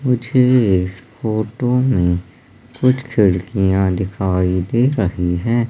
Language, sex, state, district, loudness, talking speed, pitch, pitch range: Hindi, male, Madhya Pradesh, Katni, -17 LUFS, 105 wpm, 110 Hz, 90-125 Hz